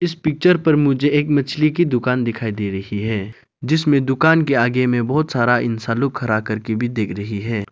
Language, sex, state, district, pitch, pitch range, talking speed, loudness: Hindi, male, Arunachal Pradesh, Lower Dibang Valley, 125 Hz, 110-145 Hz, 200 wpm, -18 LUFS